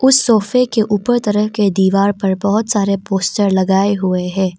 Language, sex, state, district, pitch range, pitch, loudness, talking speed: Hindi, female, Arunachal Pradesh, Papum Pare, 190-215 Hz, 200 Hz, -15 LUFS, 180 wpm